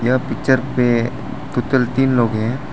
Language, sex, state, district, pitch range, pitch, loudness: Hindi, male, Arunachal Pradesh, Lower Dibang Valley, 120-130 Hz, 125 Hz, -18 LUFS